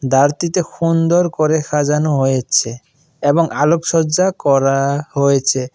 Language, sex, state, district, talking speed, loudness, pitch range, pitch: Bengali, male, Assam, Kamrup Metropolitan, 95 wpm, -15 LUFS, 135-165 Hz, 150 Hz